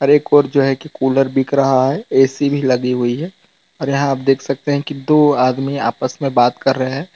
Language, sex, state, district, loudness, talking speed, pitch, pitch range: Hindi, male, Gujarat, Valsad, -16 LUFS, 250 wpm, 135 Hz, 130-145 Hz